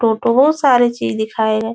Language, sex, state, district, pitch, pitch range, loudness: Hindi, female, Uttar Pradesh, Etah, 225 Hz, 220-245 Hz, -15 LUFS